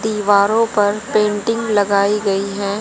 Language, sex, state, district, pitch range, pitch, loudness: Hindi, female, Haryana, Jhajjar, 200-215 Hz, 205 Hz, -16 LUFS